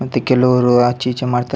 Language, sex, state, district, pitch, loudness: Kannada, male, Karnataka, Dakshina Kannada, 125 Hz, -15 LUFS